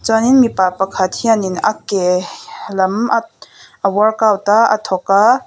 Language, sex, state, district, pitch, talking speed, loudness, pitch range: Mizo, female, Mizoram, Aizawl, 205 Hz, 145 wpm, -15 LUFS, 190-225 Hz